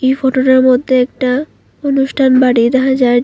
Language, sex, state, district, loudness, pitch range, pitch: Bengali, female, Assam, Hailakandi, -12 LUFS, 255-265 Hz, 260 Hz